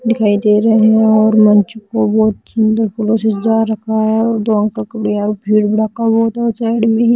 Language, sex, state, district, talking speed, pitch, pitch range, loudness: Hindi, female, Bihar, Patna, 200 wpm, 220 Hz, 215-225 Hz, -13 LUFS